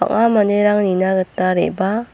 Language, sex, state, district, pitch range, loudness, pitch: Garo, female, Meghalaya, North Garo Hills, 185-210 Hz, -16 LUFS, 200 Hz